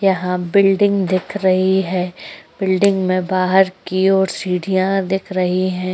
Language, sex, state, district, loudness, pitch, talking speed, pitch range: Hindi, female, Uttar Pradesh, Jyotiba Phule Nagar, -17 LUFS, 185 Hz, 140 wpm, 185-195 Hz